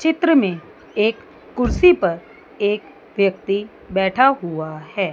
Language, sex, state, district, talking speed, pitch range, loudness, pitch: Hindi, female, Chandigarh, Chandigarh, 115 wpm, 185-250 Hz, -19 LUFS, 205 Hz